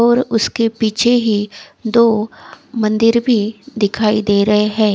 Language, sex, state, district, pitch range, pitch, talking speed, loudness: Hindi, female, Odisha, Khordha, 210-235 Hz, 220 Hz, 135 wpm, -15 LUFS